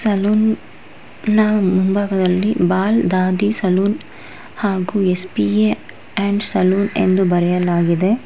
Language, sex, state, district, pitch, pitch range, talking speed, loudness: Kannada, female, Karnataka, Bangalore, 190 Hz, 185-205 Hz, 85 wpm, -17 LUFS